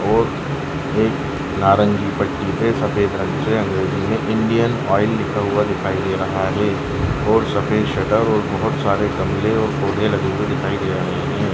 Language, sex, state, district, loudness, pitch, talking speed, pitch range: Hindi, male, Chhattisgarh, Balrampur, -19 LUFS, 110 Hz, 170 wpm, 100-135 Hz